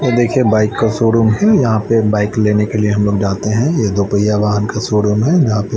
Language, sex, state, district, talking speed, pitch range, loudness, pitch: Hindi, male, Chandigarh, Chandigarh, 250 wpm, 105-115 Hz, -14 LUFS, 110 Hz